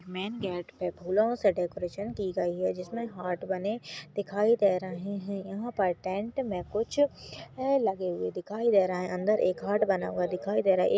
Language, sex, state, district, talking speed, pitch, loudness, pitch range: Hindi, female, Maharashtra, Aurangabad, 200 wpm, 195 Hz, -30 LUFS, 180-210 Hz